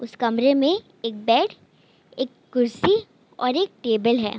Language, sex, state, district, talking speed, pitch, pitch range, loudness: Hindi, female, Uttar Pradesh, Gorakhpur, 150 wpm, 245 Hz, 230-310 Hz, -22 LUFS